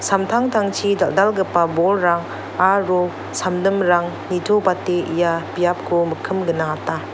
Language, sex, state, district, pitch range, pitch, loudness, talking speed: Garo, female, Meghalaya, North Garo Hills, 170-195 Hz, 180 Hz, -19 LUFS, 85 wpm